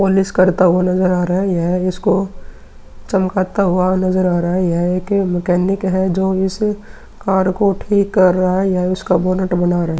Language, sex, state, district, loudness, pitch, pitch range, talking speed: Hindi, male, Uttar Pradesh, Muzaffarnagar, -16 LUFS, 185 Hz, 180-190 Hz, 200 wpm